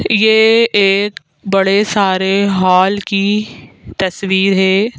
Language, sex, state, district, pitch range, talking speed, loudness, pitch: Hindi, female, Madhya Pradesh, Bhopal, 190-210 Hz, 95 wpm, -13 LUFS, 200 Hz